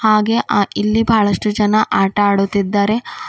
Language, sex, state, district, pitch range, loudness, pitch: Kannada, female, Karnataka, Bidar, 200-220 Hz, -15 LUFS, 210 Hz